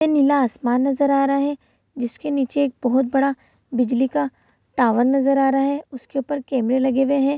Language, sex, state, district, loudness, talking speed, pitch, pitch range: Hindi, female, Bihar, Saharsa, -20 LUFS, 195 wpm, 275 Hz, 260-280 Hz